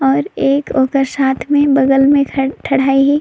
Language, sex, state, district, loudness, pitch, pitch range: Sadri, female, Chhattisgarh, Jashpur, -13 LUFS, 275 Hz, 270-280 Hz